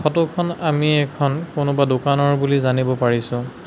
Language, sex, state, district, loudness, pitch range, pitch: Assamese, male, Assam, Sonitpur, -19 LUFS, 130-150 Hz, 140 Hz